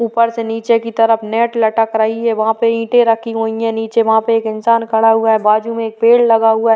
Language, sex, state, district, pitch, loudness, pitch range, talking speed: Hindi, female, Uttar Pradesh, Varanasi, 225 Hz, -14 LUFS, 225-230 Hz, 265 wpm